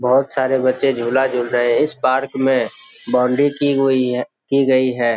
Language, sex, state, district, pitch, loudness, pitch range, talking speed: Hindi, male, Bihar, Jamui, 130 Hz, -17 LUFS, 125-135 Hz, 185 wpm